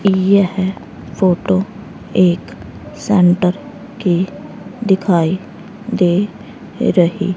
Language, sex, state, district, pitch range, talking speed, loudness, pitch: Hindi, female, Haryana, Rohtak, 180-205 Hz, 65 wpm, -16 LUFS, 190 Hz